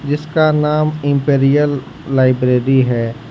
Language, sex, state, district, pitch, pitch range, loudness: Hindi, male, Jharkhand, Ranchi, 140 Hz, 130-150 Hz, -15 LUFS